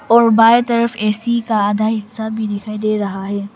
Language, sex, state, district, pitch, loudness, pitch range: Hindi, female, Arunachal Pradesh, Papum Pare, 215 Hz, -16 LUFS, 210-230 Hz